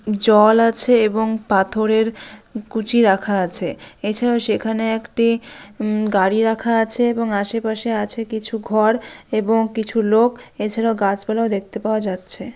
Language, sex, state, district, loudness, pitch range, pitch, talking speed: Bengali, female, West Bengal, Dakshin Dinajpur, -18 LUFS, 215-230 Hz, 220 Hz, 130 wpm